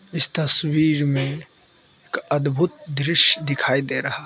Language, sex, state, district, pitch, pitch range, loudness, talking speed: Hindi, male, Mizoram, Aizawl, 150 Hz, 140-160 Hz, -17 LUFS, 140 wpm